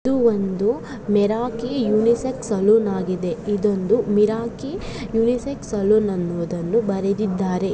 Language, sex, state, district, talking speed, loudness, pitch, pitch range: Kannada, female, Karnataka, Dakshina Kannada, 95 wpm, -21 LUFS, 215 Hz, 195-230 Hz